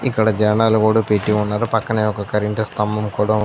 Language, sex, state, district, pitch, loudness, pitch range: Telugu, male, Andhra Pradesh, Anantapur, 105 Hz, -18 LUFS, 105-110 Hz